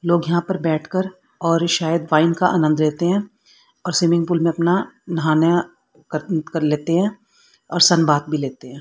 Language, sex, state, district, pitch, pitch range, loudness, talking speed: Hindi, female, Haryana, Rohtak, 170 Hz, 155-180 Hz, -19 LUFS, 185 wpm